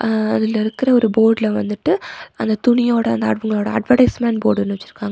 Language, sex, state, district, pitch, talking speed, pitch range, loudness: Tamil, female, Tamil Nadu, Nilgiris, 220 Hz, 175 wpm, 210-235 Hz, -17 LUFS